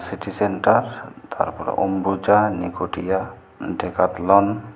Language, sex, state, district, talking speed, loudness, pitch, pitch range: Bengali, male, West Bengal, Cooch Behar, 90 wpm, -21 LUFS, 95 Hz, 95-100 Hz